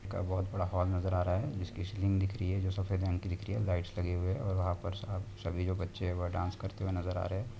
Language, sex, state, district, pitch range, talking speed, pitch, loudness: Hindi, male, Bihar, Begusarai, 90-100 Hz, 300 wpm, 95 Hz, -35 LUFS